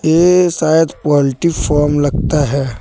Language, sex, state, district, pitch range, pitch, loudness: Hindi, male, Jharkhand, Deoghar, 145-165 Hz, 150 Hz, -13 LUFS